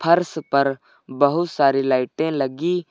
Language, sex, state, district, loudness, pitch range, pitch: Hindi, male, Uttar Pradesh, Lucknow, -20 LUFS, 135-170 Hz, 145 Hz